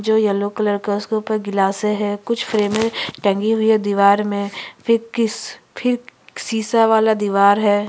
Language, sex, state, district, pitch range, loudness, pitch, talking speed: Hindi, female, Chhattisgarh, Sukma, 205-220 Hz, -18 LUFS, 210 Hz, 165 wpm